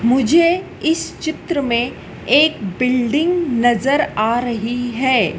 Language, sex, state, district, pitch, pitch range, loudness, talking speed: Hindi, female, Madhya Pradesh, Dhar, 255 Hz, 240-315 Hz, -17 LUFS, 110 wpm